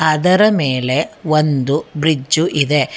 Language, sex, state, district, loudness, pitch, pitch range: Kannada, female, Karnataka, Bangalore, -15 LUFS, 155 Hz, 145-160 Hz